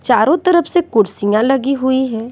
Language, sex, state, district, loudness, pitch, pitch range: Hindi, female, Bihar, West Champaran, -14 LUFS, 265 Hz, 225-315 Hz